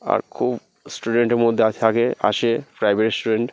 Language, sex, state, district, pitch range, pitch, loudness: Bengali, male, West Bengal, North 24 Parganas, 110-120 Hz, 115 Hz, -20 LUFS